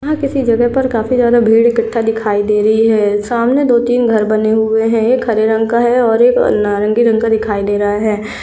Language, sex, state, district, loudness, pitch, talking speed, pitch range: Hindi, female, Maharashtra, Solapur, -13 LUFS, 225 Hz, 220 wpm, 215-240 Hz